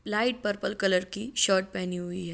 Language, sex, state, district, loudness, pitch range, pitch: Hindi, female, Andhra Pradesh, Guntur, -28 LUFS, 180-210 Hz, 195 Hz